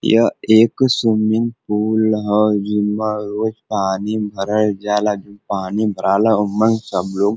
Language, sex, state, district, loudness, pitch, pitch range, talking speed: Bhojpuri, male, Uttar Pradesh, Varanasi, -17 LUFS, 105 Hz, 105-110 Hz, 140 wpm